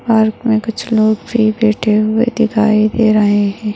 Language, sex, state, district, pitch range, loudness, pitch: Hindi, female, Chhattisgarh, Bastar, 215-225 Hz, -13 LUFS, 220 Hz